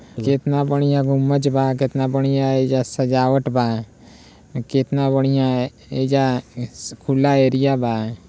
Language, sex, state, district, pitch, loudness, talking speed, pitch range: Bhojpuri, male, Bihar, Gopalganj, 135 Hz, -19 LUFS, 110 wpm, 125-135 Hz